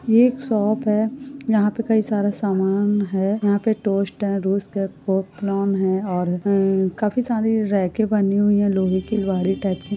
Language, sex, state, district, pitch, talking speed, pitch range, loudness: Hindi, female, Jharkhand, Jamtara, 205 Hz, 180 wpm, 195-215 Hz, -21 LUFS